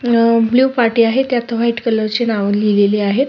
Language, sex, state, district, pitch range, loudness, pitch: Marathi, female, Maharashtra, Sindhudurg, 215-240 Hz, -14 LUFS, 230 Hz